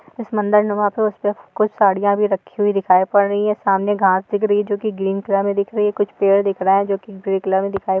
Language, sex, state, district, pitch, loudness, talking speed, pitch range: Hindi, female, Uttar Pradesh, Ghazipur, 200 Hz, -18 LUFS, 285 wpm, 195-210 Hz